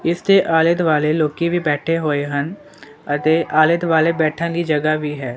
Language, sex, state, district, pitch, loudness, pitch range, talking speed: Punjabi, male, Punjab, Kapurthala, 160 Hz, -17 LUFS, 150-170 Hz, 180 wpm